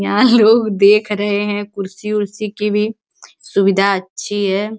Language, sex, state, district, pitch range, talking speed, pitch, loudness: Hindi, female, Uttar Pradesh, Gorakhpur, 200-210 Hz, 135 wpm, 205 Hz, -15 LUFS